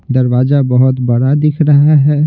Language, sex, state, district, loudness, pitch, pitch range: Hindi, male, Bihar, Patna, -11 LUFS, 140 Hz, 130-150 Hz